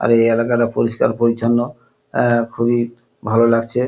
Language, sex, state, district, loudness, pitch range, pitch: Bengali, male, West Bengal, Kolkata, -17 LUFS, 115-120 Hz, 115 Hz